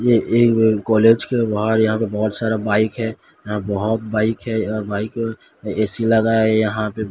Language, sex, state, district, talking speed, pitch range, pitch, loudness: Hindi, male, Odisha, Sambalpur, 185 wpm, 110-115 Hz, 110 Hz, -19 LUFS